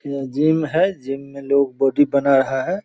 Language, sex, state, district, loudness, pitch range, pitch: Hindi, male, Bihar, Saharsa, -19 LUFS, 135-155 Hz, 140 Hz